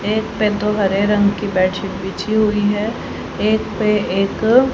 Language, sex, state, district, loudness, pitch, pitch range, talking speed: Hindi, female, Haryana, Charkhi Dadri, -18 LUFS, 210 Hz, 195-215 Hz, 165 wpm